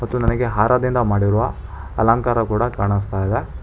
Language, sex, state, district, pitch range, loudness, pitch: Kannada, male, Karnataka, Bangalore, 100-120 Hz, -19 LUFS, 105 Hz